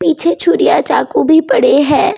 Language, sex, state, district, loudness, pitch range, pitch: Hindi, female, Delhi, New Delhi, -11 LUFS, 320-390 Hz, 345 Hz